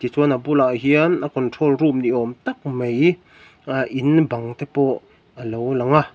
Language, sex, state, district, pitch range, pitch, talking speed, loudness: Mizo, male, Mizoram, Aizawl, 125-145 Hz, 135 Hz, 195 wpm, -20 LUFS